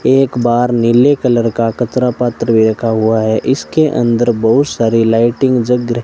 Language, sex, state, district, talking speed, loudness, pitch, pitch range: Hindi, male, Rajasthan, Bikaner, 190 wpm, -12 LUFS, 120 Hz, 115-125 Hz